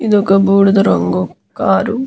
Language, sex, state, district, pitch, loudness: Telugu, male, Andhra Pradesh, Guntur, 195 Hz, -13 LUFS